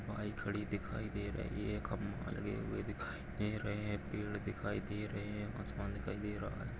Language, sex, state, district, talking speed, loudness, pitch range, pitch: Hindi, male, Maharashtra, Dhule, 210 wpm, -42 LUFS, 100-105 Hz, 105 Hz